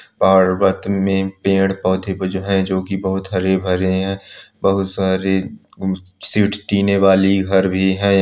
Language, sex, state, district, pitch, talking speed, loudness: Hindi, male, Andhra Pradesh, Srikakulam, 95 Hz, 145 wpm, -17 LUFS